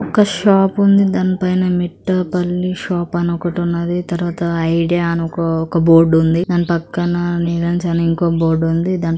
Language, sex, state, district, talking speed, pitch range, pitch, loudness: Telugu, female, Andhra Pradesh, Guntur, 135 wpm, 170-180 Hz, 175 Hz, -16 LUFS